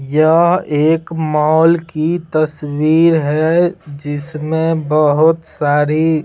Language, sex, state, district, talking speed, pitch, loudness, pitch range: Hindi, male, Bihar, Patna, 85 wpm, 155 Hz, -14 LUFS, 150-165 Hz